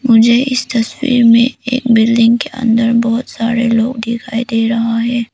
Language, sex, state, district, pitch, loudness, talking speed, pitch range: Hindi, female, Arunachal Pradesh, Papum Pare, 235 Hz, -13 LUFS, 170 wpm, 230-240 Hz